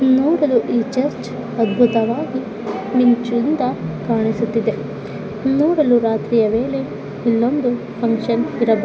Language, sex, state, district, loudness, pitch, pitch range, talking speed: Kannada, female, Karnataka, Dakshina Kannada, -18 LUFS, 235 Hz, 225-255 Hz, 90 wpm